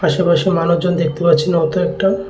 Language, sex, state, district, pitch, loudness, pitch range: Bengali, male, Tripura, West Tripura, 170 Hz, -15 LUFS, 165-185 Hz